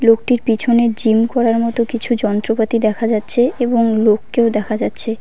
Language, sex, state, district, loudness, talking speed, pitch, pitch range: Bengali, female, West Bengal, Cooch Behar, -16 LUFS, 150 wpm, 230 Hz, 220-235 Hz